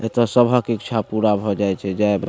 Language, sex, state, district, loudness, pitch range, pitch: Maithili, male, Bihar, Supaul, -19 LUFS, 100-120 Hz, 110 Hz